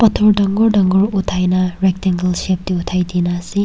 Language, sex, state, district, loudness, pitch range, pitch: Nagamese, female, Nagaland, Kohima, -16 LUFS, 180-200 Hz, 185 Hz